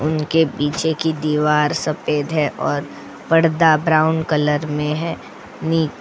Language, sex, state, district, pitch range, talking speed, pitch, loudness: Hindi, female, Goa, North and South Goa, 150-160 Hz, 130 wpm, 155 Hz, -18 LUFS